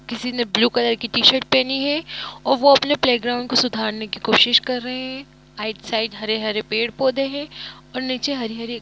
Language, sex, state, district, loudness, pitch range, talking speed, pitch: Hindi, female, Jharkhand, Jamtara, -19 LUFS, 230-265 Hz, 225 wpm, 245 Hz